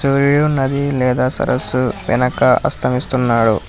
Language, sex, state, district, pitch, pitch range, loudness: Telugu, male, Telangana, Hyderabad, 130 Hz, 125-140 Hz, -16 LUFS